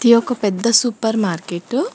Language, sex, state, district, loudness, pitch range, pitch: Telugu, female, Telangana, Hyderabad, -17 LUFS, 205-240 Hz, 230 Hz